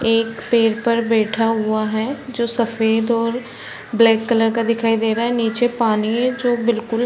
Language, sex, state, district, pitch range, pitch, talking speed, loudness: Hindi, female, Chhattisgarh, Bilaspur, 225-235 Hz, 230 Hz, 180 wpm, -18 LUFS